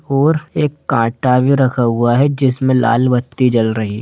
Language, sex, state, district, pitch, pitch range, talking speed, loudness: Hindi, male, Bihar, Darbhanga, 125 Hz, 120-140 Hz, 180 wpm, -14 LUFS